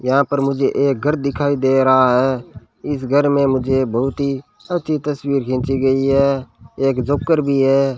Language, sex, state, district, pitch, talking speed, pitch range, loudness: Hindi, male, Rajasthan, Bikaner, 135 Hz, 180 wpm, 130-140 Hz, -17 LUFS